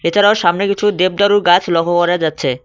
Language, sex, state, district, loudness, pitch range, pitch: Bengali, male, West Bengal, Cooch Behar, -14 LUFS, 175-205 Hz, 180 Hz